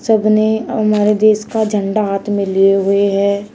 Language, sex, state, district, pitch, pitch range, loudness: Hindi, female, Uttar Pradesh, Shamli, 210 Hz, 200-215 Hz, -14 LUFS